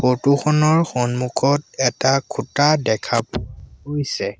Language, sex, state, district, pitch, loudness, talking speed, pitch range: Assamese, male, Assam, Sonitpur, 140 Hz, -19 LUFS, 110 wpm, 125-150 Hz